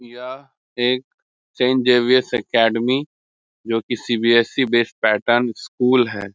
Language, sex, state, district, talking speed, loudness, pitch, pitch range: Hindi, male, Bihar, Muzaffarpur, 130 wpm, -18 LUFS, 120 Hz, 115-125 Hz